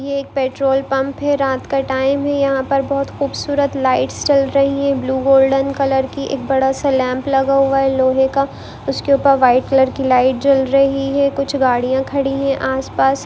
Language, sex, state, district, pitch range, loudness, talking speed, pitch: Hindi, female, Rajasthan, Nagaur, 265-275 Hz, -16 LUFS, 200 wpm, 275 Hz